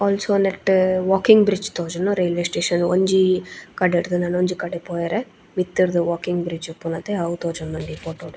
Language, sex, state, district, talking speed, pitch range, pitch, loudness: Tulu, female, Karnataka, Dakshina Kannada, 160 wpm, 170-195 Hz, 180 Hz, -21 LUFS